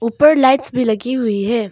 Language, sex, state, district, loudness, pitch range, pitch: Hindi, female, Arunachal Pradesh, Longding, -15 LUFS, 225-265 Hz, 240 Hz